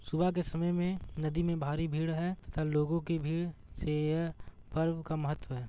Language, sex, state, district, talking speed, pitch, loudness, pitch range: Hindi, male, Bihar, Gaya, 200 wpm, 160 Hz, -34 LUFS, 150-170 Hz